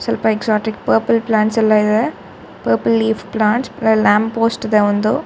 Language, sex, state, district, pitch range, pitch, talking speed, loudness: Kannada, female, Karnataka, Shimoga, 205-225 Hz, 215 Hz, 160 wpm, -16 LUFS